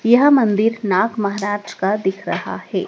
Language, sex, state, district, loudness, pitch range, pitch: Hindi, female, Madhya Pradesh, Dhar, -18 LUFS, 200-230 Hz, 205 Hz